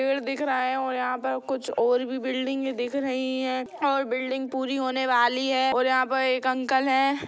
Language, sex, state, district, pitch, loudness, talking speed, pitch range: Hindi, female, Maharashtra, Chandrapur, 260 Hz, -25 LUFS, 215 wpm, 255-265 Hz